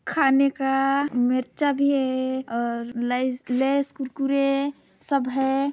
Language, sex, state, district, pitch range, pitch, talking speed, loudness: Hindi, female, Chhattisgarh, Sarguja, 255-275 Hz, 270 Hz, 115 wpm, -24 LUFS